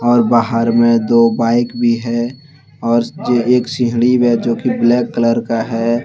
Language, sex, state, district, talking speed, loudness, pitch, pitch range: Hindi, male, Jharkhand, Deoghar, 180 wpm, -14 LUFS, 120 Hz, 115-120 Hz